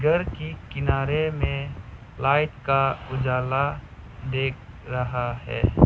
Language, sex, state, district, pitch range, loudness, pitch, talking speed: Hindi, male, Arunachal Pradesh, Lower Dibang Valley, 120-135 Hz, -25 LUFS, 130 Hz, 100 wpm